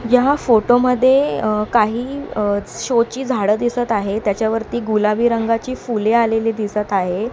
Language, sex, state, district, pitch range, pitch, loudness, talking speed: Marathi, female, Maharashtra, Mumbai Suburban, 210-245 Hz, 225 Hz, -17 LUFS, 125 wpm